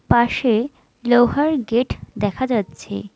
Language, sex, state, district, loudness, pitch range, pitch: Bengali, female, West Bengal, Alipurduar, -19 LUFS, 210-250 Hz, 240 Hz